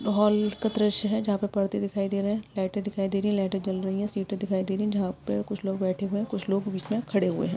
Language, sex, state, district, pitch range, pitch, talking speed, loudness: Hindi, female, Maharashtra, Nagpur, 195-210 Hz, 200 Hz, 285 wpm, -28 LUFS